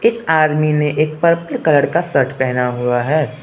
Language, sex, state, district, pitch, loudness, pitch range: Hindi, male, Arunachal Pradesh, Lower Dibang Valley, 150 Hz, -16 LUFS, 130-155 Hz